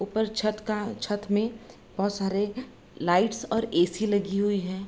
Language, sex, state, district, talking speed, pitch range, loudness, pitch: Hindi, female, Bihar, Araria, 160 wpm, 195-220 Hz, -27 LUFS, 205 Hz